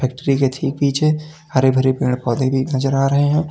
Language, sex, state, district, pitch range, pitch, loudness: Hindi, male, Uttar Pradesh, Lalitpur, 130-145 Hz, 135 Hz, -18 LUFS